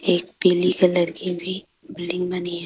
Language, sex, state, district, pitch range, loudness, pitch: Hindi, female, Madhya Pradesh, Bhopal, 175-180 Hz, -21 LUFS, 180 Hz